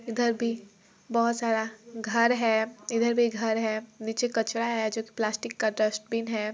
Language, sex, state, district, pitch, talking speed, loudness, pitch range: Hindi, female, Jharkhand, Jamtara, 225 Hz, 175 wpm, -28 LUFS, 220-235 Hz